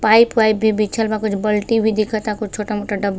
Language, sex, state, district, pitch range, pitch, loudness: Bhojpuri, female, Uttar Pradesh, Deoria, 210-220 Hz, 215 Hz, -18 LUFS